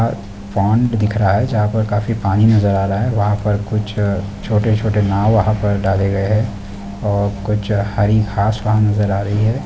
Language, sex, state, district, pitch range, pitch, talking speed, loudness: Hindi, male, Jharkhand, Sahebganj, 100-110 Hz, 105 Hz, 200 wpm, -17 LUFS